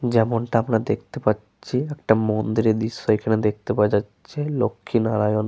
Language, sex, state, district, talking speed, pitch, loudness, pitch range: Bengali, male, West Bengal, Paschim Medinipur, 140 wpm, 110 Hz, -22 LUFS, 105-120 Hz